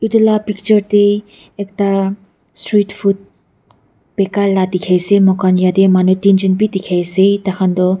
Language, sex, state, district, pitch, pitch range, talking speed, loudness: Nagamese, female, Nagaland, Dimapur, 195 Hz, 185-205 Hz, 170 wpm, -14 LUFS